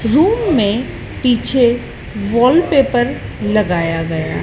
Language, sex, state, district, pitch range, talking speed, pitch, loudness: Hindi, female, Madhya Pradesh, Dhar, 205-270 Hz, 80 wpm, 240 Hz, -15 LUFS